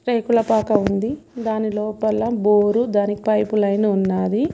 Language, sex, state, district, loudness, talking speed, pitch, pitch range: Telugu, female, Telangana, Mahabubabad, -19 LUFS, 130 wpm, 215 Hz, 205-225 Hz